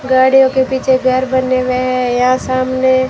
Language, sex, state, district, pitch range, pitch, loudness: Hindi, female, Rajasthan, Jaisalmer, 255-260 Hz, 260 Hz, -13 LUFS